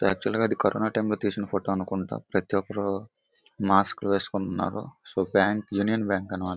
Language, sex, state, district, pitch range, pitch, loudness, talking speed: Telugu, male, Andhra Pradesh, Visakhapatnam, 95-105 Hz, 100 Hz, -27 LUFS, 165 wpm